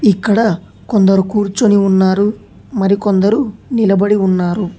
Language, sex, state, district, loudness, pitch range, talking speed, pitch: Telugu, male, Telangana, Hyderabad, -13 LUFS, 195-210 Hz, 90 wpm, 200 Hz